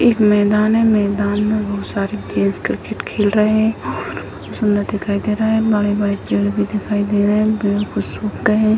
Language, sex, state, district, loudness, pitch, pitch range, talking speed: Hindi, female, Bihar, Sitamarhi, -17 LUFS, 205 Hz, 205-215 Hz, 185 wpm